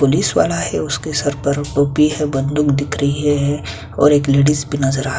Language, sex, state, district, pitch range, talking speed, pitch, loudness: Hindi, male, Chhattisgarh, Kabirdham, 140-145 Hz, 220 wpm, 145 Hz, -16 LUFS